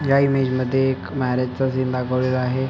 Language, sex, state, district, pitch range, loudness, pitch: Marathi, male, Maharashtra, Sindhudurg, 125-135 Hz, -21 LUFS, 130 Hz